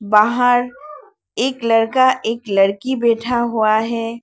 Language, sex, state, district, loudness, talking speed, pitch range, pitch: Hindi, female, Arunachal Pradesh, Lower Dibang Valley, -17 LUFS, 115 wpm, 225-255 Hz, 235 Hz